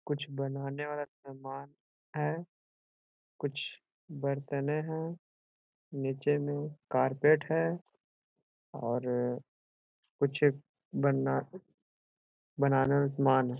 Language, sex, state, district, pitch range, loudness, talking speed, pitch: Hindi, male, Bihar, Jahanabad, 135-150 Hz, -33 LUFS, 90 wpm, 140 Hz